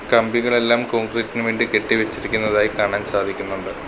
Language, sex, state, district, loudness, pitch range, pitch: Malayalam, male, Kerala, Kollam, -20 LUFS, 110-115 Hz, 115 Hz